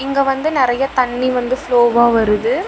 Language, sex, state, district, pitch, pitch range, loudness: Tamil, female, Tamil Nadu, Namakkal, 255 Hz, 240-270 Hz, -15 LUFS